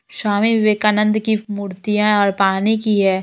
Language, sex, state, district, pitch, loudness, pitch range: Hindi, female, Bihar, Muzaffarpur, 210 Hz, -17 LUFS, 200-215 Hz